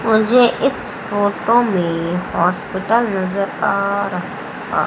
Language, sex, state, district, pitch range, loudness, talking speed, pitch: Hindi, female, Madhya Pradesh, Umaria, 185-225 Hz, -17 LUFS, 110 wpm, 200 Hz